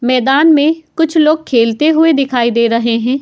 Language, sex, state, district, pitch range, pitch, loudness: Hindi, female, Uttar Pradesh, Muzaffarnagar, 235-315 Hz, 275 Hz, -12 LUFS